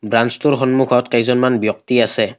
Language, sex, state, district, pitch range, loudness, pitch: Assamese, male, Assam, Kamrup Metropolitan, 115-130 Hz, -16 LUFS, 125 Hz